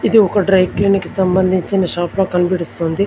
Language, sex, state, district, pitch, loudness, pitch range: Telugu, male, Telangana, Komaram Bheem, 185 Hz, -15 LUFS, 180-195 Hz